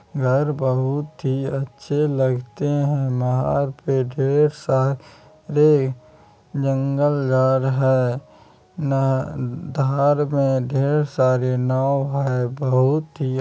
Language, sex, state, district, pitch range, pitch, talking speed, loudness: Hindi, male, Bihar, Araria, 130-145 Hz, 135 Hz, 105 wpm, -20 LUFS